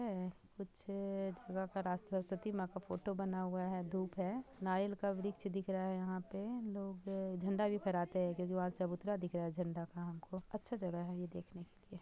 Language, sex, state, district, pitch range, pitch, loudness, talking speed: Hindi, female, Bihar, Purnia, 180-200 Hz, 190 Hz, -42 LUFS, 215 wpm